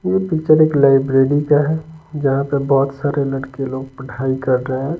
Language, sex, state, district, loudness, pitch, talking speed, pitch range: Hindi, male, Bihar, Patna, -17 LUFS, 140 Hz, 190 wpm, 135-155 Hz